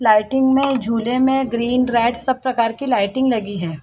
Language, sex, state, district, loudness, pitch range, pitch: Hindi, female, Chhattisgarh, Bastar, -18 LUFS, 225-260 Hz, 240 Hz